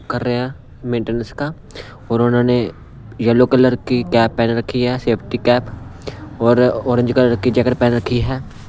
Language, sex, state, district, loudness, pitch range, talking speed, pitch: Hindi, male, Punjab, Pathankot, -17 LUFS, 115-125 Hz, 160 wpm, 120 Hz